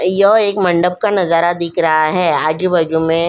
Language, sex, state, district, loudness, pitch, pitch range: Hindi, female, Goa, North and South Goa, -14 LUFS, 175 Hz, 165-185 Hz